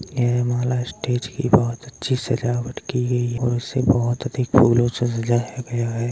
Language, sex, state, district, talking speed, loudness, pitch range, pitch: Hindi, male, Uttar Pradesh, Hamirpur, 185 wpm, -21 LUFS, 120-125 Hz, 120 Hz